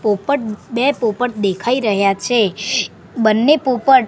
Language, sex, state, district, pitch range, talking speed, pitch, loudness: Gujarati, female, Gujarat, Gandhinagar, 210-255 Hz, 120 wpm, 230 Hz, -17 LUFS